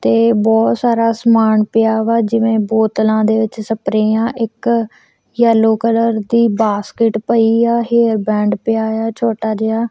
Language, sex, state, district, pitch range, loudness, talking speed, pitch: Punjabi, female, Punjab, Kapurthala, 220-230 Hz, -14 LUFS, 145 wpm, 225 Hz